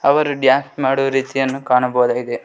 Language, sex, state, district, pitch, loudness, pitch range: Kannada, male, Karnataka, Koppal, 135 Hz, -17 LUFS, 125-135 Hz